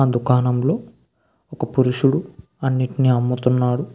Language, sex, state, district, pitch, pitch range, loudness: Telugu, male, Andhra Pradesh, Krishna, 130 Hz, 125-135 Hz, -20 LUFS